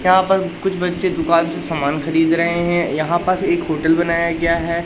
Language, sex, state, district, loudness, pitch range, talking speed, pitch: Hindi, male, Madhya Pradesh, Katni, -18 LUFS, 165-180 Hz, 210 wpm, 170 Hz